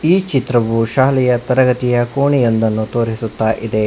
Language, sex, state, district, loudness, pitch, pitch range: Kannada, male, Karnataka, Bangalore, -15 LUFS, 120 Hz, 115-130 Hz